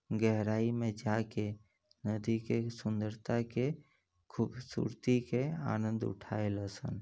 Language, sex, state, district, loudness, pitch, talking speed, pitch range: Bhojpuri, male, Uttar Pradesh, Gorakhpur, -36 LUFS, 110 Hz, 105 wpm, 105-120 Hz